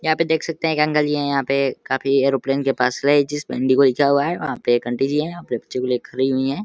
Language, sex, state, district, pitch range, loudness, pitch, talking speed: Hindi, male, Uttar Pradesh, Deoria, 130-150 Hz, -20 LUFS, 140 Hz, 325 wpm